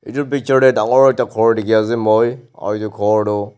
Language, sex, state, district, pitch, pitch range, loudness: Nagamese, male, Nagaland, Dimapur, 115 Hz, 105-130 Hz, -15 LUFS